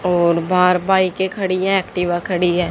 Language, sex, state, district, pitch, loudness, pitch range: Hindi, female, Haryana, Charkhi Dadri, 180 Hz, -17 LUFS, 175-190 Hz